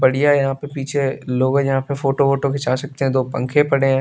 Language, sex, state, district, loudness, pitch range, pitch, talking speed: Hindi, male, Bihar, West Champaran, -19 LUFS, 135-140 Hz, 135 Hz, 270 wpm